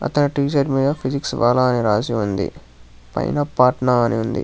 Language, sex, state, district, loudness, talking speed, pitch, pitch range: Telugu, male, Telangana, Hyderabad, -19 LUFS, 175 wpm, 125 Hz, 110-140 Hz